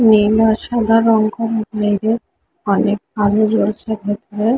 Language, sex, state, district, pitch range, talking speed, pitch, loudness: Bengali, female, West Bengal, Kolkata, 210-225 Hz, 80 wpm, 215 Hz, -16 LUFS